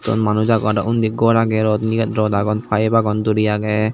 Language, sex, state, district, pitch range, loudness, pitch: Chakma, male, Tripura, Dhalai, 105-115 Hz, -17 LUFS, 110 Hz